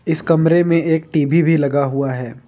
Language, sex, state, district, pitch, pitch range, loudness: Hindi, male, Jharkhand, Ranchi, 160 Hz, 140-165 Hz, -16 LUFS